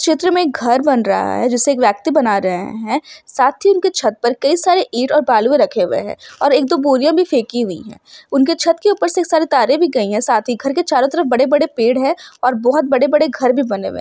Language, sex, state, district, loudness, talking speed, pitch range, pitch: Hindi, female, Bihar, Sitamarhi, -15 LUFS, 260 wpm, 245-320 Hz, 275 Hz